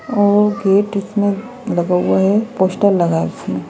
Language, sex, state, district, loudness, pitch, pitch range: Hindi, female, Madhya Pradesh, Bhopal, -16 LUFS, 200 Hz, 185-210 Hz